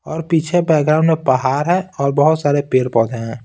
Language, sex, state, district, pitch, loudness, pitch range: Hindi, male, Bihar, Patna, 145 Hz, -16 LUFS, 130-160 Hz